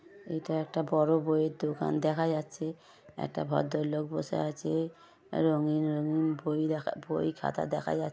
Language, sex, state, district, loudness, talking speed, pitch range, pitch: Bengali, male, West Bengal, Paschim Medinipur, -31 LUFS, 155 wpm, 150-160 Hz, 155 Hz